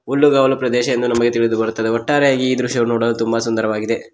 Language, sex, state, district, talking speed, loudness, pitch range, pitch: Kannada, male, Karnataka, Koppal, 175 wpm, -17 LUFS, 115-130 Hz, 120 Hz